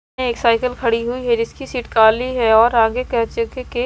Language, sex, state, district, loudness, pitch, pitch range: Hindi, female, Haryana, Rohtak, -17 LUFS, 235 Hz, 230-250 Hz